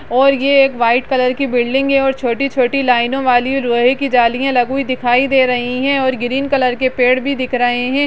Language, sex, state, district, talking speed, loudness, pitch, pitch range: Hindi, female, Chhattisgarh, Rajnandgaon, 225 wpm, -14 LUFS, 260 Hz, 245-270 Hz